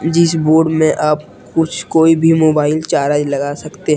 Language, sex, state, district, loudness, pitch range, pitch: Hindi, male, Jharkhand, Deoghar, -14 LUFS, 150-160 Hz, 155 Hz